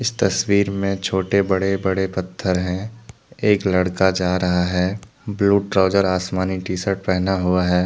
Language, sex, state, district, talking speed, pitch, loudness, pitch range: Hindi, male, Jharkhand, Deoghar, 155 wpm, 95 Hz, -20 LUFS, 90-100 Hz